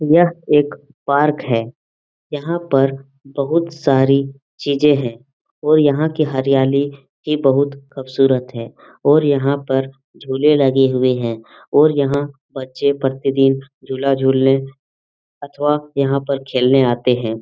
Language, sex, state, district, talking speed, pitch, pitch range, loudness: Hindi, male, Jharkhand, Jamtara, 120 wpm, 135 Hz, 130-145 Hz, -17 LUFS